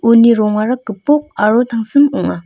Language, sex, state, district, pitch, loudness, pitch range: Garo, female, Meghalaya, North Garo Hills, 230 Hz, -13 LUFS, 215-255 Hz